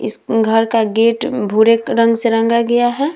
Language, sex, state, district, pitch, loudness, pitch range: Hindi, female, Bihar, Vaishali, 230 Hz, -14 LUFS, 225-240 Hz